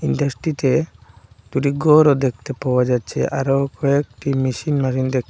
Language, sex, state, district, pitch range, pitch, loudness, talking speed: Bengali, male, Assam, Hailakandi, 125-140 Hz, 135 Hz, -19 LUFS, 125 wpm